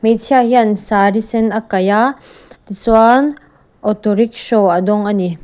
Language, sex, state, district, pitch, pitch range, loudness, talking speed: Mizo, female, Mizoram, Aizawl, 220 Hz, 205-230 Hz, -13 LUFS, 145 wpm